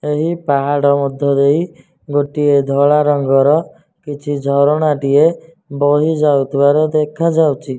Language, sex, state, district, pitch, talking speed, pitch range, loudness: Odia, male, Odisha, Nuapada, 145 Hz, 100 wpm, 140-155 Hz, -14 LUFS